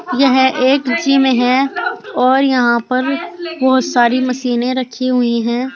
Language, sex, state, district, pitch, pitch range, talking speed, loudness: Hindi, female, Uttar Pradesh, Saharanpur, 260 Hz, 250-275 Hz, 135 wpm, -14 LUFS